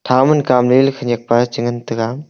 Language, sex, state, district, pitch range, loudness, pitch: Wancho, male, Arunachal Pradesh, Longding, 120-130 Hz, -15 LUFS, 125 Hz